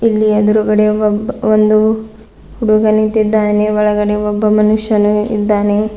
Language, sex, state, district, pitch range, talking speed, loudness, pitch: Kannada, female, Karnataka, Bidar, 210-215 Hz, 100 wpm, -13 LUFS, 215 Hz